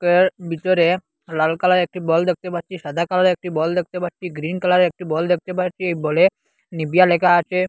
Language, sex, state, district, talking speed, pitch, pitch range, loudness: Bengali, male, Assam, Hailakandi, 205 wpm, 180 Hz, 170-180 Hz, -19 LUFS